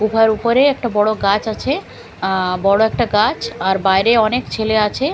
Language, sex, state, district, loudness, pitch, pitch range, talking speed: Bengali, female, Bihar, Katihar, -16 LUFS, 215 Hz, 200-235 Hz, 175 wpm